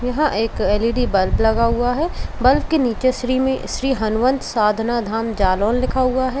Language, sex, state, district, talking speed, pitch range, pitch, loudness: Hindi, female, Uttar Pradesh, Jalaun, 195 wpm, 220-260 Hz, 245 Hz, -19 LUFS